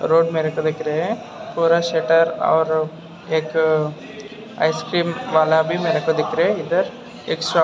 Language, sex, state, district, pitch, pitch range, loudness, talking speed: Hindi, male, Maharashtra, Dhule, 160 Hz, 160-170 Hz, -20 LUFS, 155 wpm